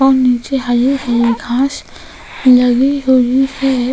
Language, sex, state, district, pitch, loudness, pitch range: Hindi, female, Goa, North and South Goa, 260 Hz, -13 LUFS, 245-270 Hz